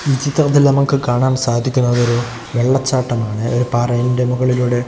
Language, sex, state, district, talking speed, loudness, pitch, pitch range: Malayalam, male, Kerala, Kozhikode, 125 wpm, -16 LUFS, 125 Hz, 120-130 Hz